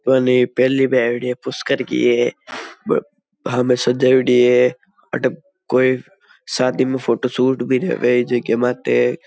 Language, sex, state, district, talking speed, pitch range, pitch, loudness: Marwari, male, Rajasthan, Nagaur, 130 wpm, 125-130 Hz, 125 Hz, -17 LUFS